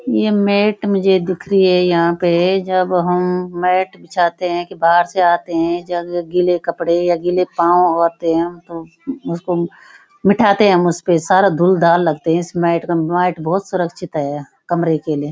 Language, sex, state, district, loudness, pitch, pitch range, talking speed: Hindi, female, Uttarakhand, Uttarkashi, -16 LUFS, 175 Hz, 170-185 Hz, 180 wpm